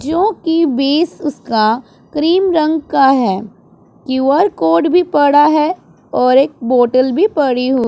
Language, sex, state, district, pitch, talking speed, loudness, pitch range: Hindi, male, Punjab, Pathankot, 285 Hz, 135 wpm, -13 LUFS, 250-320 Hz